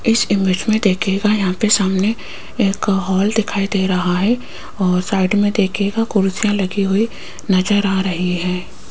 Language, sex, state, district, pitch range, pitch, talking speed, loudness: Hindi, female, Rajasthan, Jaipur, 190-210 Hz, 195 Hz, 160 wpm, -17 LUFS